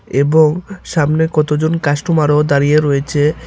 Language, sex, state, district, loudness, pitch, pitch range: Bengali, male, Tripura, Unakoti, -14 LUFS, 150 Hz, 145-160 Hz